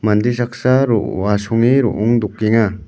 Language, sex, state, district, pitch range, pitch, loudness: Garo, male, Meghalaya, West Garo Hills, 105-120 Hz, 115 Hz, -16 LUFS